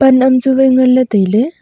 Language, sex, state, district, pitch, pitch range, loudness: Wancho, female, Arunachal Pradesh, Longding, 255 Hz, 250-265 Hz, -11 LUFS